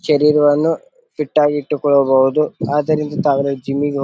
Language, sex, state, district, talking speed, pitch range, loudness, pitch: Kannada, male, Karnataka, Bijapur, 135 wpm, 140-150 Hz, -16 LUFS, 145 Hz